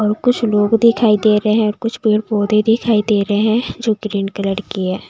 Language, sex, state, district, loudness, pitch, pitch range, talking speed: Hindi, female, Maharashtra, Mumbai Suburban, -16 LUFS, 215 Hz, 210-225 Hz, 235 wpm